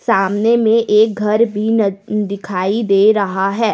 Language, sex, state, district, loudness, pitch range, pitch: Hindi, female, Jharkhand, Deoghar, -15 LUFS, 200-225 Hz, 210 Hz